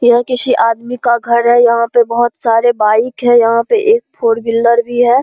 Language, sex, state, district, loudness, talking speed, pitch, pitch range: Hindi, female, Bihar, Saharsa, -12 LUFS, 220 wpm, 240 Hz, 235-245 Hz